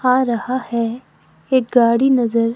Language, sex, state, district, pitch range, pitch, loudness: Hindi, female, Himachal Pradesh, Shimla, 230-260 Hz, 245 Hz, -17 LUFS